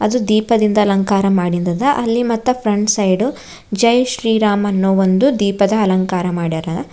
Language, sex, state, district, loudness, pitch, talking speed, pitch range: Kannada, female, Karnataka, Bidar, -15 LUFS, 205 Hz, 130 wpm, 190-230 Hz